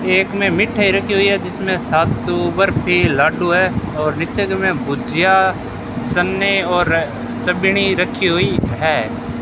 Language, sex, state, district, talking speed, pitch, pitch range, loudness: Hindi, male, Rajasthan, Bikaner, 135 wpm, 185 Hz, 155-195 Hz, -16 LUFS